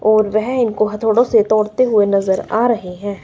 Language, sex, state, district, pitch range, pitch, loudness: Hindi, female, Himachal Pradesh, Shimla, 205-225 Hz, 215 Hz, -16 LUFS